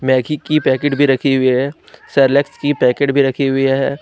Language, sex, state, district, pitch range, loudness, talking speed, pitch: Hindi, male, Jharkhand, Deoghar, 130-145 Hz, -15 LUFS, 210 wpm, 135 Hz